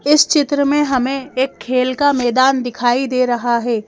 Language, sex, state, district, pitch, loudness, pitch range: Hindi, female, Madhya Pradesh, Bhopal, 260 Hz, -16 LUFS, 245-280 Hz